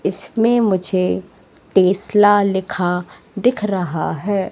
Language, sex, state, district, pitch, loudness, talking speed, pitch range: Hindi, female, Madhya Pradesh, Katni, 195 Hz, -18 LUFS, 95 wpm, 180-205 Hz